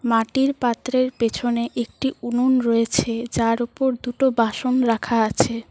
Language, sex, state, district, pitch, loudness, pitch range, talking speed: Bengali, female, West Bengal, Cooch Behar, 240 Hz, -21 LUFS, 230-255 Hz, 125 wpm